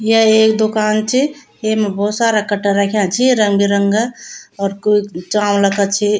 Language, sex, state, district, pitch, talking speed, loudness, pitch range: Garhwali, female, Uttarakhand, Tehri Garhwal, 210 Hz, 165 wpm, -15 LUFS, 200-220 Hz